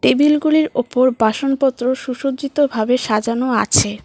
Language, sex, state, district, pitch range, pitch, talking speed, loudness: Bengali, female, West Bengal, Cooch Behar, 230-275 Hz, 255 Hz, 90 wpm, -17 LUFS